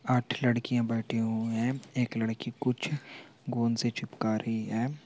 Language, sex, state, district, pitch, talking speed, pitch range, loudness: Hindi, male, Andhra Pradesh, Anantapur, 120 Hz, 155 wpm, 115-125 Hz, -31 LUFS